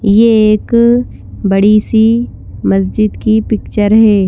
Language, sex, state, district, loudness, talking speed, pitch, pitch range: Hindi, female, Madhya Pradesh, Bhopal, -11 LUFS, 110 wpm, 215 Hz, 195-220 Hz